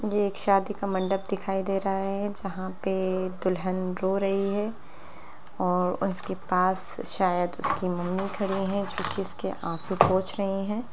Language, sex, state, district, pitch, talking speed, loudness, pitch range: Hindi, female, Bihar, Lakhisarai, 195 Hz, 160 wpm, -27 LUFS, 185-200 Hz